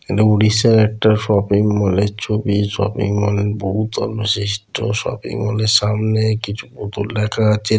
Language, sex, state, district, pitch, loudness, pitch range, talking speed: Bengali, male, West Bengal, Dakshin Dinajpur, 105 Hz, -17 LUFS, 100-110 Hz, 145 wpm